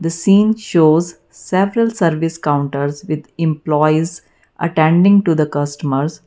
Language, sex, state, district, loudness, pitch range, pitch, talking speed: English, female, Karnataka, Bangalore, -15 LUFS, 150-180 Hz, 160 Hz, 115 wpm